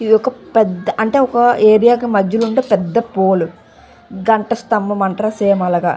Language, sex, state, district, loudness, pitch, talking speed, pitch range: Telugu, female, Andhra Pradesh, Visakhapatnam, -15 LUFS, 220 Hz, 150 wpm, 195-235 Hz